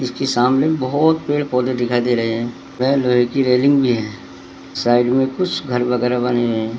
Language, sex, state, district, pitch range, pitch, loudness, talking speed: Hindi, male, Uttarakhand, Tehri Garhwal, 120-135 Hz, 125 Hz, -17 LUFS, 185 wpm